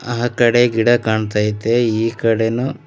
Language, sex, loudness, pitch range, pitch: Kannada, male, -16 LUFS, 110-120 Hz, 115 Hz